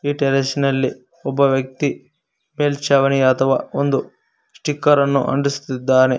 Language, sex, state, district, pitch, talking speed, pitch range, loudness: Kannada, male, Karnataka, Koppal, 140 Hz, 105 wpm, 135-145 Hz, -18 LUFS